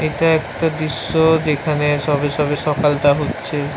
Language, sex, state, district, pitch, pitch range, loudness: Bengali, male, West Bengal, Kolkata, 150 Hz, 145-155 Hz, -17 LUFS